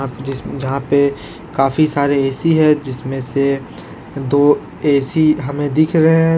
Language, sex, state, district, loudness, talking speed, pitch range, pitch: Hindi, male, Jharkhand, Ranchi, -16 LUFS, 130 wpm, 135-155 Hz, 140 Hz